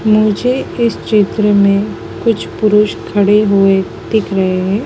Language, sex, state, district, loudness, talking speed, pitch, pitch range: Hindi, female, Madhya Pradesh, Dhar, -13 LUFS, 135 wpm, 210 Hz, 195-215 Hz